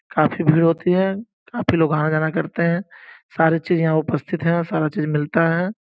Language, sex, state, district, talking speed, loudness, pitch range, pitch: Hindi, male, Uttar Pradesh, Gorakhpur, 195 wpm, -20 LUFS, 155-180 Hz, 165 Hz